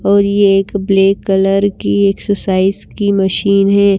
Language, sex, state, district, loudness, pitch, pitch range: Hindi, female, Himachal Pradesh, Shimla, -13 LUFS, 195 Hz, 195-200 Hz